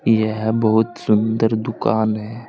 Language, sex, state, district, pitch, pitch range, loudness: Hindi, male, Uttar Pradesh, Saharanpur, 110 Hz, 110-115 Hz, -19 LUFS